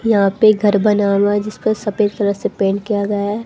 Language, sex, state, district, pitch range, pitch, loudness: Hindi, female, Haryana, Rohtak, 200-215 Hz, 205 Hz, -16 LUFS